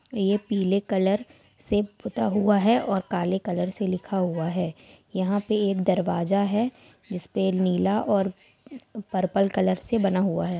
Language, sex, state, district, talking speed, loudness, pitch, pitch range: Hindi, female, Jharkhand, Sahebganj, 165 wpm, -25 LUFS, 195 Hz, 185-205 Hz